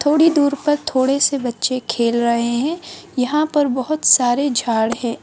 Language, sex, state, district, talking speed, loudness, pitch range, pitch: Hindi, female, Bihar, Madhepura, 170 wpm, -17 LUFS, 240-295 Hz, 265 Hz